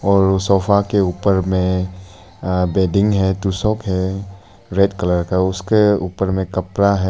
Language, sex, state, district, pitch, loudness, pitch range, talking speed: Hindi, male, Arunachal Pradesh, Papum Pare, 95 Hz, -17 LUFS, 95-100 Hz, 150 wpm